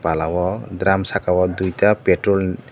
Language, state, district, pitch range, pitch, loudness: Kokborok, Tripura, Dhalai, 90-100 Hz, 95 Hz, -19 LUFS